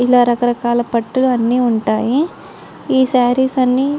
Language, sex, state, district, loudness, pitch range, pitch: Telugu, female, Andhra Pradesh, Guntur, -15 LUFS, 240-260 Hz, 245 Hz